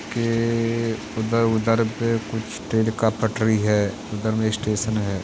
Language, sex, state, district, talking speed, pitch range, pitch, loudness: Hindi, male, Uttar Pradesh, Hamirpur, 135 wpm, 110-115 Hz, 110 Hz, -23 LUFS